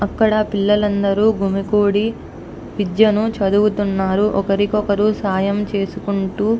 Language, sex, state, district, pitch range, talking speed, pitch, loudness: Telugu, female, Andhra Pradesh, Anantapur, 200-210 Hz, 80 wpm, 205 Hz, -17 LUFS